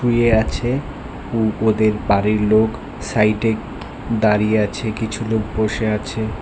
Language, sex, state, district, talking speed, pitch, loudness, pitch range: Bengali, male, Tripura, West Tripura, 120 wpm, 110 Hz, -19 LUFS, 105-115 Hz